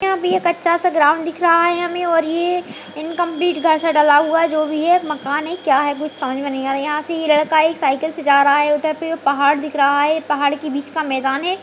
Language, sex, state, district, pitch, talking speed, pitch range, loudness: Hindi, female, Bihar, Jamui, 310 Hz, 275 wpm, 290-335 Hz, -17 LUFS